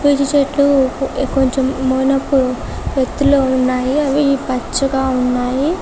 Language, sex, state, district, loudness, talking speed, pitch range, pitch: Telugu, female, Telangana, Karimnagar, -16 LUFS, 95 wpm, 260-280 Hz, 270 Hz